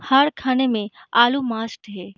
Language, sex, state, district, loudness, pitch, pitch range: Hindi, female, Bihar, Begusarai, -20 LUFS, 235 Hz, 215-260 Hz